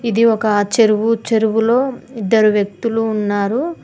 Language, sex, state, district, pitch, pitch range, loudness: Telugu, female, Telangana, Mahabubabad, 225 Hz, 215-230 Hz, -16 LUFS